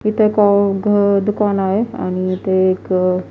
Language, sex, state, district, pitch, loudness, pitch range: Marathi, female, Maharashtra, Washim, 200 Hz, -16 LUFS, 185-210 Hz